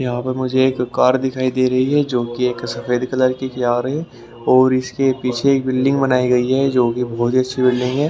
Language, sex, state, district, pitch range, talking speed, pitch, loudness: Hindi, male, Haryana, Rohtak, 125-130 Hz, 235 wpm, 130 Hz, -17 LUFS